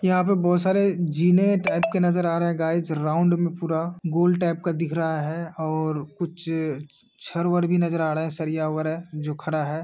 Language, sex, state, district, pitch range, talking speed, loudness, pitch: Hindi, male, Uttar Pradesh, Etah, 155-175 Hz, 220 wpm, -24 LUFS, 165 Hz